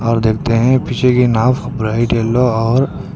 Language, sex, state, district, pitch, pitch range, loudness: Hindi, male, Karnataka, Bangalore, 120 Hz, 115-125 Hz, -14 LUFS